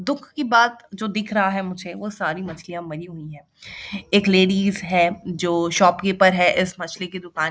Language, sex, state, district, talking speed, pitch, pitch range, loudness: Hindi, female, Bihar, Jahanabad, 200 wpm, 185 Hz, 175-200 Hz, -20 LUFS